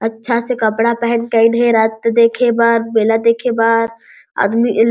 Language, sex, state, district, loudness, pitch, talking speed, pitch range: Chhattisgarhi, female, Chhattisgarh, Jashpur, -14 LUFS, 230 Hz, 195 wpm, 225-235 Hz